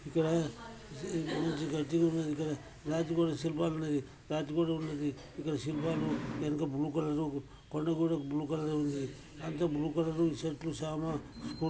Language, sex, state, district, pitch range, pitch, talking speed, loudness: Telugu, male, Telangana, Karimnagar, 150-165 Hz, 155 Hz, 150 wpm, -35 LUFS